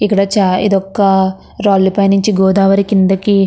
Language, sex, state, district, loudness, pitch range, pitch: Telugu, female, Andhra Pradesh, Anantapur, -12 LUFS, 190-200 Hz, 195 Hz